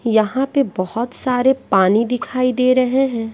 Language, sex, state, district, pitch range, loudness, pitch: Hindi, female, Bihar, West Champaran, 225-260 Hz, -17 LUFS, 250 Hz